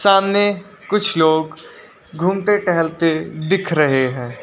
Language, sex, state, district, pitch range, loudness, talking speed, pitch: Hindi, male, Uttar Pradesh, Lucknow, 160-200 Hz, -17 LUFS, 110 wpm, 175 Hz